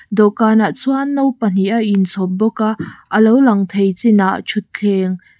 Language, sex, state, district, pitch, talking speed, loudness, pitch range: Mizo, female, Mizoram, Aizawl, 210 Hz, 155 wpm, -15 LUFS, 195-225 Hz